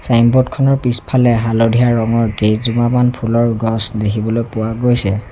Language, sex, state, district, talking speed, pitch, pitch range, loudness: Assamese, male, Assam, Sonitpur, 125 wpm, 115 Hz, 110-120 Hz, -14 LUFS